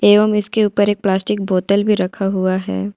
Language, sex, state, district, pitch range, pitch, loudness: Hindi, female, Jharkhand, Ranchi, 185-210 Hz, 200 Hz, -16 LUFS